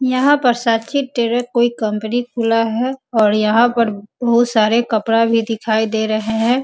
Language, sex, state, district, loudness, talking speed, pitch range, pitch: Hindi, female, Bihar, Sitamarhi, -16 LUFS, 155 wpm, 220-245 Hz, 230 Hz